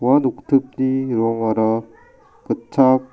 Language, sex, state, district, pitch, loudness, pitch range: Garo, male, Meghalaya, South Garo Hills, 125 Hz, -19 LUFS, 115-130 Hz